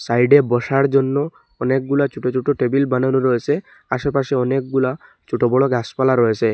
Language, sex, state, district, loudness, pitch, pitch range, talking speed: Bengali, male, Assam, Hailakandi, -18 LUFS, 130 Hz, 125-140 Hz, 135 wpm